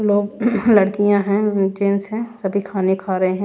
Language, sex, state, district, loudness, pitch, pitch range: Hindi, female, Punjab, Pathankot, -18 LUFS, 200 Hz, 195-210 Hz